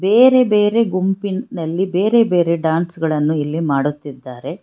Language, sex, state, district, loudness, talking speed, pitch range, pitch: Kannada, female, Karnataka, Bangalore, -16 LUFS, 115 wpm, 155-205 Hz, 175 Hz